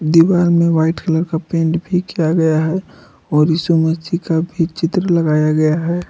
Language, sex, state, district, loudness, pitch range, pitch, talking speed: Hindi, male, Jharkhand, Palamu, -16 LUFS, 160-175 Hz, 165 Hz, 185 wpm